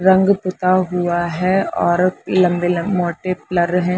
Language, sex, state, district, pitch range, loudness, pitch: Hindi, female, Chhattisgarh, Bilaspur, 175-185 Hz, -17 LUFS, 180 Hz